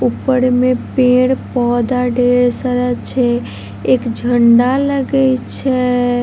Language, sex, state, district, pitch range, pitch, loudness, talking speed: Maithili, female, Bihar, Vaishali, 245-255 Hz, 250 Hz, -14 LUFS, 95 wpm